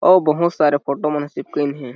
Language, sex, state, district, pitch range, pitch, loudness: Chhattisgarhi, male, Chhattisgarh, Jashpur, 145-155 Hz, 150 Hz, -18 LUFS